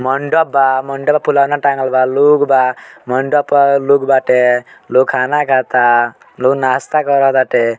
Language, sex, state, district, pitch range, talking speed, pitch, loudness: Bhojpuri, male, Bihar, Muzaffarpur, 130-140 Hz, 170 wpm, 135 Hz, -13 LUFS